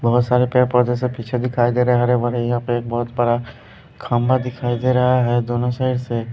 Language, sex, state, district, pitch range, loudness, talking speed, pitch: Hindi, male, Delhi, New Delhi, 120-125 Hz, -19 LUFS, 245 wpm, 120 Hz